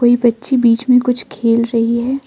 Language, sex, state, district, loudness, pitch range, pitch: Hindi, female, Arunachal Pradesh, Lower Dibang Valley, -14 LUFS, 230-250 Hz, 240 Hz